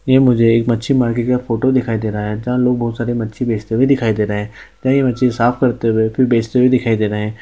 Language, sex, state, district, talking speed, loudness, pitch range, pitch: Hindi, male, Chhattisgarh, Sukma, 275 wpm, -16 LUFS, 110-125 Hz, 120 Hz